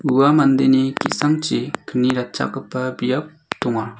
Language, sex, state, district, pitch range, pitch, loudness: Garo, male, Meghalaya, South Garo Hills, 125-145 Hz, 130 Hz, -19 LUFS